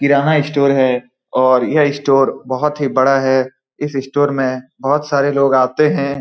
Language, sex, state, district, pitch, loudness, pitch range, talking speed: Hindi, male, Bihar, Saran, 135 Hz, -15 LUFS, 130-145 Hz, 145 wpm